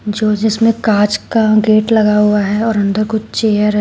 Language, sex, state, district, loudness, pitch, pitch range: Hindi, female, Uttar Pradesh, Shamli, -13 LUFS, 215 Hz, 210-220 Hz